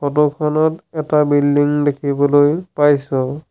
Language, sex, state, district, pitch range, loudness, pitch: Assamese, male, Assam, Sonitpur, 145-150 Hz, -16 LUFS, 145 Hz